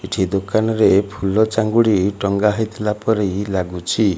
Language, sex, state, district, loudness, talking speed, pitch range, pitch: Odia, male, Odisha, Malkangiri, -18 LUFS, 100 wpm, 95-110 Hz, 105 Hz